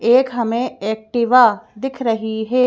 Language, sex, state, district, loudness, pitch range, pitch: Hindi, female, Madhya Pradesh, Bhopal, -17 LUFS, 220-250 Hz, 235 Hz